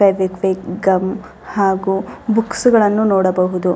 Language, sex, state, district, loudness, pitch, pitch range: Kannada, female, Karnataka, Raichur, -16 LUFS, 195 Hz, 185-215 Hz